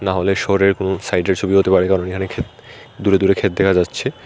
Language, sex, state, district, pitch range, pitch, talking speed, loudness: Bengali, male, Tripura, Unakoti, 95-100 Hz, 95 Hz, 195 wpm, -17 LUFS